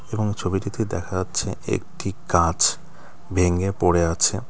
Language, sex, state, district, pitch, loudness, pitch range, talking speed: Bengali, male, West Bengal, Cooch Behar, 95 Hz, -23 LUFS, 90-100 Hz, 135 wpm